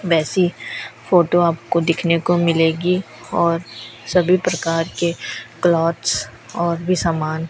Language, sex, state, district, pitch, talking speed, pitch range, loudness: Hindi, female, Rajasthan, Bikaner, 170 Hz, 110 wpm, 160-175 Hz, -19 LUFS